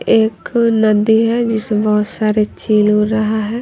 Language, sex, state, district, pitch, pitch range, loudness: Hindi, female, Bihar, West Champaran, 215 Hz, 215-225 Hz, -14 LUFS